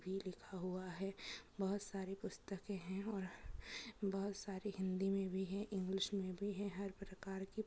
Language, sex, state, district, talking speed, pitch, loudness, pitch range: Hindi, female, Karnataka, Gulbarga, 170 wpm, 195 Hz, -45 LUFS, 190-200 Hz